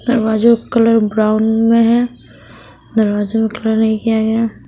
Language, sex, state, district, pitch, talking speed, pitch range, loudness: Hindi, female, Chhattisgarh, Raipur, 220 Hz, 155 wpm, 215-230 Hz, -14 LUFS